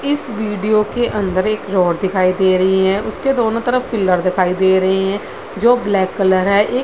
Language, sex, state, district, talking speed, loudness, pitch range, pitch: Hindi, female, Bihar, Madhepura, 185 wpm, -16 LUFS, 190-225 Hz, 200 Hz